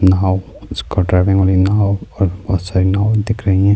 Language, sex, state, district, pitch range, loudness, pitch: Urdu, male, Bihar, Saharsa, 95-100 Hz, -15 LUFS, 95 Hz